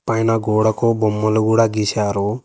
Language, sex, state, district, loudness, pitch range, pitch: Telugu, male, Telangana, Hyderabad, -17 LUFS, 105-115 Hz, 110 Hz